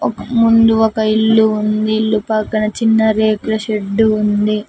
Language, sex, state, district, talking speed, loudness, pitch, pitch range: Telugu, female, Telangana, Mahabubabad, 130 wpm, -14 LUFS, 220 Hz, 215-220 Hz